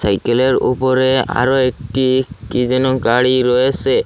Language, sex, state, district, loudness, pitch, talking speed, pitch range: Bengali, male, Assam, Hailakandi, -15 LUFS, 130 Hz, 120 wpm, 125-130 Hz